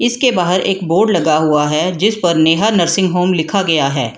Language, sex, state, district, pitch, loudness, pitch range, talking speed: Hindi, female, Bihar, Gaya, 180 Hz, -14 LUFS, 160-195 Hz, 215 wpm